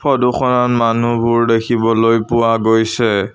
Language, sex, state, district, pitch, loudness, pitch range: Assamese, male, Assam, Sonitpur, 115 Hz, -14 LUFS, 115-120 Hz